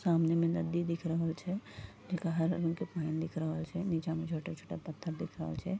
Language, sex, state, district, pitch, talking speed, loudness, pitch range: Maithili, female, Bihar, Vaishali, 165 Hz, 215 wpm, -35 LUFS, 165-170 Hz